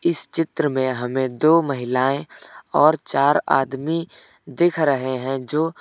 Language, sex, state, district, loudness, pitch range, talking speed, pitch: Hindi, male, Uttar Pradesh, Lucknow, -20 LUFS, 130-165 Hz, 135 wpm, 135 Hz